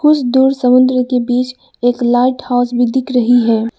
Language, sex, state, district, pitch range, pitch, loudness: Hindi, female, Arunachal Pradesh, Lower Dibang Valley, 245-255 Hz, 250 Hz, -13 LUFS